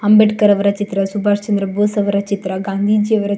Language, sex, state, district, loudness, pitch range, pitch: Kannada, female, Karnataka, Shimoga, -16 LUFS, 200-210 Hz, 205 Hz